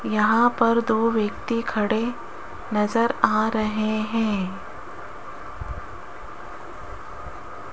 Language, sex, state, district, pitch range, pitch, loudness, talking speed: Hindi, female, Rajasthan, Jaipur, 215-230 Hz, 220 Hz, -22 LUFS, 70 wpm